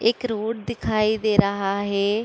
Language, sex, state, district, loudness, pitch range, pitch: Hindi, female, Uttar Pradesh, Budaun, -23 LUFS, 200-225 Hz, 215 Hz